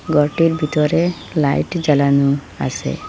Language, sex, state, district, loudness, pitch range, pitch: Bengali, female, Assam, Hailakandi, -17 LUFS, 140-165 Hz, 150 Hz